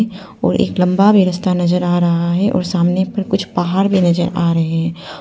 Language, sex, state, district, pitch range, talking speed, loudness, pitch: Hindi, female, Arunachal Pradesh, Papum Pare, 175-195 Hz, 220 wpm, -15 LUFS, 180 Hz